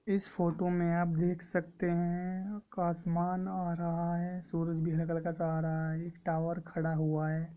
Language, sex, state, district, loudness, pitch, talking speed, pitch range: Hindi, male, Jharkhand, Sahebganj, -34 LUFS, 170 Hz, 180 wpm, 165-180 Hz